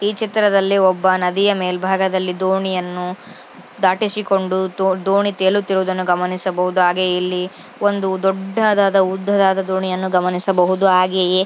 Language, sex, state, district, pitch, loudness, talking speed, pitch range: Kannada, female, Karnataka, Dharwad, 190 Hz, -17 LUFS, 105 wpm, 185-195 Hz